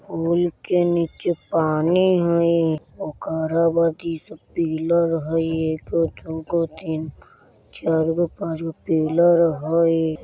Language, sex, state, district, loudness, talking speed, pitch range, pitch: Bajjika, male, Bihar, Vaishali, -21 LUFS, 130 wpm, 160-170 Hz, 165 Hz